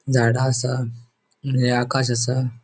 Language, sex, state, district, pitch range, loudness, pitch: Konkani, male, Goa, North and South Goa, 120-130 Hz, -21 LUFS, 125 Hz